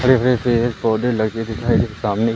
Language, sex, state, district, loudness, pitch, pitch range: Hindi, male, Madhya Pradesh, Umaria, -18 LUFS, 115 Hz, 110-120 Hz